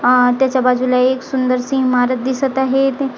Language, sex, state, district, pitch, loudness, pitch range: Marathi, female, Maharashtra, Gondia, 260 Hz, -15 LUFS, 250-265 Hz